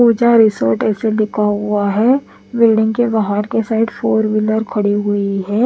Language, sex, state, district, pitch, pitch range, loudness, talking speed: Hindi, female, Punjab, Pathankot, 215 Hz, 205-225 Hz, -15 LUFS, 180 wpm